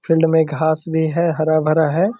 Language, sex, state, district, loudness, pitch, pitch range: Hindi, male, Bihar, Purnia, -17 LUFS, 160 Hz, 155-165 Hz